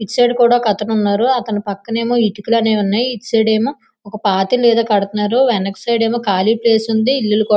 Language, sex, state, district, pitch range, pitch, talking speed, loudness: Telugu, female, Andhra Pradesh, Visakhapatnam, 210-240 Hz, 220 Hz, 190 wpm, -15 LUFS